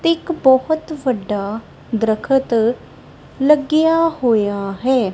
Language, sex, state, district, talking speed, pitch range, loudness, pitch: Punjabi, female, Punjab, Kapurthala, 95 wpm, 220-310 Hz, -17 LUFS, 260 Hz